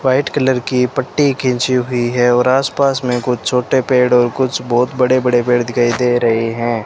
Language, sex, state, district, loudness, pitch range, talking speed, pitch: Hindi, male, Rajasthan, Bikaner, -15 LUFS, 120-130 Hz, 210 wpm, 125 Hz